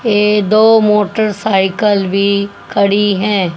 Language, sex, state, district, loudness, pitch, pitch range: Hindi, female, Haryana, Charkhi Dadri, -12 LUFS, 205 Hz, 200-210 Hz